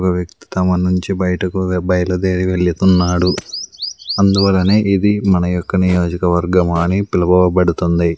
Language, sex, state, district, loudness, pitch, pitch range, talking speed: Telugu, male, Andhra Pradesh, Sri Satya Sai, -15 LUFS, 90 Hz, 90-95 Hz, 105 wpm